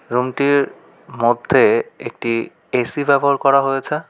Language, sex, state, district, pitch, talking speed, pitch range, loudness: Bengali, male, West Bengal, Cooch Behar, 140 Hz, 100 wpm, 130-145 Hz, -17 LUFS